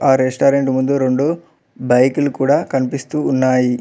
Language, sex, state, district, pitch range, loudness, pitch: Telugu, male, Telangana, Mahabubabad, 130-145 Hz, -16 LUFS, 135 Hz